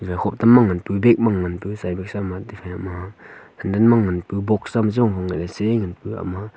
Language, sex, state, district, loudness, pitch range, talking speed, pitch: Wancho, male, Arunachal Pradesh, Longding, -20 LUFS, 90-110 Hz, 185 wpm, 100 Hz